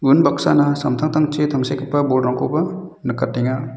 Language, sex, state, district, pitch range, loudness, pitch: Garo, male, Meghalaya, South Garo Hills, 130-150 Hz, -18 LUFS, 140 Hz